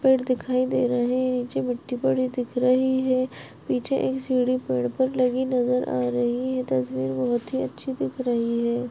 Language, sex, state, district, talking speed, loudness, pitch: Hindi, female, Chhattisgarh, Balrampur, 190 wpm, -24 LUFS, 245 Hz